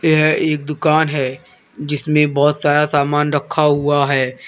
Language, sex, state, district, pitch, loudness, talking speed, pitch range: Hindi, male, Uttar Pradesh, Lalitpur, 150 Hz, -16 LUFS, 145 wpm, 145-155 Hz